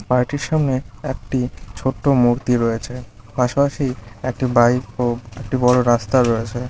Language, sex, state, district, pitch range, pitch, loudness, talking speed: Bengali, male, West Bengal, Malda, 115-130 Hz, 125 Hz, -19 LUFS, 115 wpm